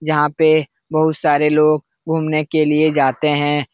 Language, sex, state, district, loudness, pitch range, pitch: Hindi, male, Bihar, Jahanabad, -16 LUFS, 150-155 Hz, 155 Hz